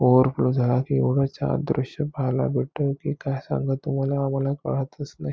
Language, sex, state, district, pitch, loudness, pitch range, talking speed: Marathi, male, Maharashtra, Nagpur, 135 Hz, -24 LUFS, 130-140 Hz, 170 wpm